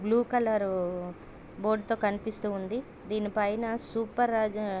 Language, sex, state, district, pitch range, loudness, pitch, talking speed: Telugu, female, Andhra Pradesh, Visakhapatnam, 205-225 Hz, -30 LUFS, 215 Hz, 110 wpm